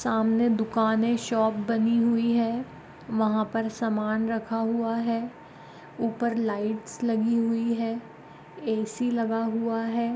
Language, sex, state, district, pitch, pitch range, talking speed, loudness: Hindi, female, Goa, North and South Goa, 225 Hz, 220-235 Hz, 125 wpm, -26 LUFS